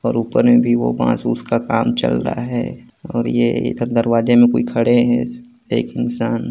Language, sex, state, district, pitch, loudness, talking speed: Hindi, male, Chhattisgarh, Jashpur, 115 Hz, -17 LUFS, 200 wpm